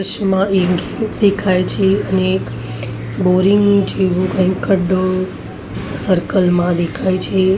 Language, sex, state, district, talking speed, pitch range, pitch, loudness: Gujarati, female, Maharashtra, Mumbai Suburban, 95 wpm, 180-195 Hz, 185 Hz, -16 LUFS